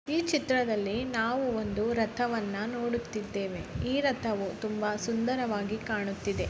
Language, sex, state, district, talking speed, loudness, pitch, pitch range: Kannada, male, Karnataka, Bellary, 100 wpm, -31 LUFS, 225 Hz, 210-245 Hz